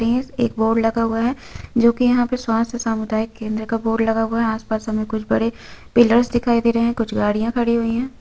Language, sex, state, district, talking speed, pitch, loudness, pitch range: Hindi, female, Chhattisgarh, Sukma, 225 wpm, 230 Hz, -19 LUFS, 225-240 Hz